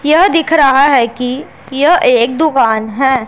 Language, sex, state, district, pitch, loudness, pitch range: Hindi, female, Punjab, Pathankot, 270 Hz, -11 LUFS, 250-315 Hz